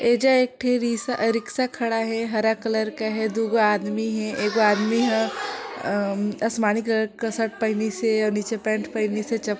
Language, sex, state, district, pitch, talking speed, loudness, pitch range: Chhattisgarhi, female, Chhattisgarh, Sarguja, 220 Hz, 180 wpm, -23 LUFS, 215-230 Hz